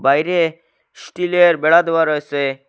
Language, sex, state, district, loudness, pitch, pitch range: Bengali, male, Assam, Hailakandi, -16 LUFS, 165 Hz, 145-170 Hz